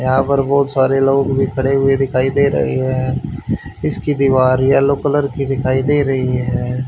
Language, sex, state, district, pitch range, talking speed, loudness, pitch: Hindi, male, Haryana, Rohtak, 130-140 Hz, 185 wpm, -16 LUFS, 135 Hz